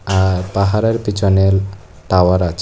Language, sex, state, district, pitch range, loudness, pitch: Bengali, male, Tripura, West Tripura, 90-100 Hz, -15 LUFS, 95 Hz